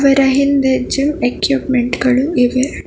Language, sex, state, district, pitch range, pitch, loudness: Kannada, female, Karnataka, Bangalore, 250-275 Hz, 265 Hz, -14 LUFS